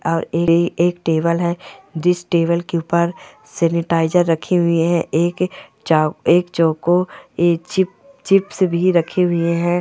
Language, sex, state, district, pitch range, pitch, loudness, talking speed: Hindi, male, Goa, North and South Goa, 165-180 Hz, 170 Hz, -18 LUFS, 130 wpm